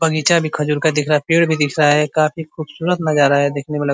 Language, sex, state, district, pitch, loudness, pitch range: Hindi, male, Uttar Pradesh, Ghazipur, 155 Hz, -16 LUFS, 150-160 Hz